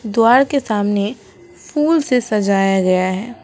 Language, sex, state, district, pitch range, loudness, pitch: Hindi, female, West Bengal, Alipurduar, 200-255 Hz, -16 LUFS, 215 Hz